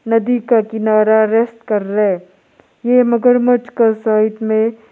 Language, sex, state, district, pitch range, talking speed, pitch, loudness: Hindi, male, Arunachal Pradesh, Lower Dibang Valley, 215-240 Hz, 145 wpm, 225 Hz, -15 LUFS